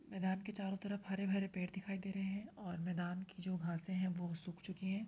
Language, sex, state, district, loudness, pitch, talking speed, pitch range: Hindi, female, Uttar Pradesh, Varanasi, -43 LUFS, 190 Hz, 250 wpm, 180-195 Hz